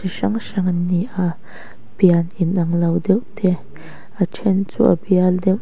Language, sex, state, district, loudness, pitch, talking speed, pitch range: Mizo, female, Mizoram, Aizawl, -18 LUFS, 185 Hz, 170 wpm, 175-195 Hz